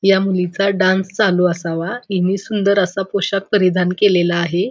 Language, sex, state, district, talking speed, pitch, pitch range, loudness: Marathi, female, Maharashtra, Pune, 155 wpm, 190 Hz, 180-200 Hz, -17 LUFS